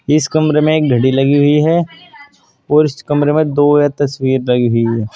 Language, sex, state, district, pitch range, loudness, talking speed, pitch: Hindi, male, Uttar Pradesh, Saharanpur, 130-155 Hz, -13 LUFS, 210 wpm, 145 Hz